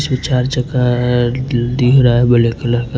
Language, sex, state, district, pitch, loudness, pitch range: Hindi, male, Punjab, Fazilka, 125 Hz, -14 LUFS, 120-125 Hz